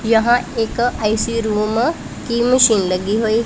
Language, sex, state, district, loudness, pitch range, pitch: Hindi, female, Punjab, Pathankot, -17 LUFS, 215-240 Hz, 225 Hz